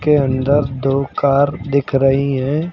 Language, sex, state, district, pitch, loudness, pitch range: Hindi, male, Uttar Pradesh, Lucknow, 140 Hz, -16 LUFS, 135-145 Hz